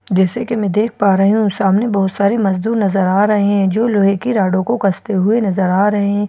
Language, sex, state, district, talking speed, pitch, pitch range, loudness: Hindi, female, Bihar, Katihar, 265 wpm, 200 Hz, 195-215 Hz, -15 LUFS